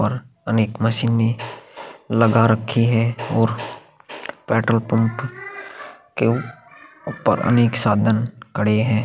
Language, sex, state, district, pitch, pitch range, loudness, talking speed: Hindi, male, Maharashtra, Aurangabad, 115 Hz, 110-120 Hz, -19 LUFS, 100 wpm